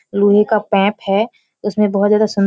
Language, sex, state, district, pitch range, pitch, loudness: Hindi, female, Bihar, Kishanganj, 200-210 Hz, 210 Hz, -15 LUFS